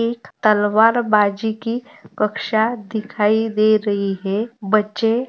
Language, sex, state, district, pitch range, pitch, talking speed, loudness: Hindi, female, Maharashtra, Aurangabad, 210-225 Hz, 215 Hz, 125 wpm, -19 LUFS